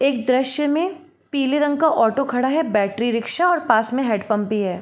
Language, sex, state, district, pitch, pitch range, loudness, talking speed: Hindi, female, Uttar Pradesh, Jalaun, 260 Hz, 225-295 Hz, -20 LUFS, 225 wpm